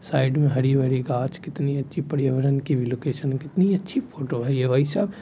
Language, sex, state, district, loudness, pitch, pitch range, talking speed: Hindi, male, Bihar, Supaul, -23 LUFS, 140 Hz, 130-160 Hz, 205 wpm